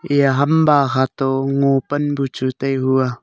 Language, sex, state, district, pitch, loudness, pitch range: Wancho, male, Arunachal Pradesh, Longding, 135 Hz, -17 LUFS, 130-145 Hz